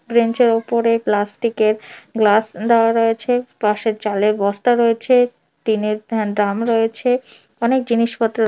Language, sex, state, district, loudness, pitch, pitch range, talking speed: Bengali, female, West Bengal, Dakshin Dinajpur, -18 LUFS, 225 Hz, 215-235 Hz, 105 wpm